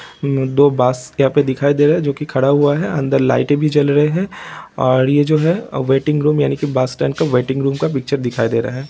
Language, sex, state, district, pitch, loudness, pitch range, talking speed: Hindi, male, Bihar, Vaishali, 140 Hz, -16 LUFS, 130-145 Hz, 250 wpm